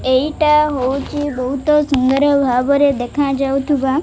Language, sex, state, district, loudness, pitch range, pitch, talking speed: Odia, female, Odisha, Malkangiri, -16 LUFS, 265-290 Hz, 280 Hz, 120 wpm